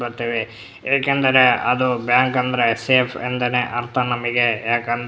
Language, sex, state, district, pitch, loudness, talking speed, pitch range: Kannada, male, Karnataka, Bellary, 125 Hz, -18 LUFS, 130 wpm, 120-125 Hz